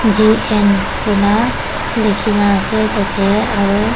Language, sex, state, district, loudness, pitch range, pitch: Nagamese, female, Nagaland, Kohima, -14 LUFS, 200-215 Hz, 210 Hz